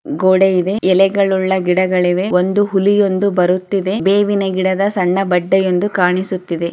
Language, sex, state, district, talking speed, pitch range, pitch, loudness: Kannada, female, Karnataka, Chamarajanagar, 105 wpm, 180-195 Hz, 190 Hz, -15 LUFS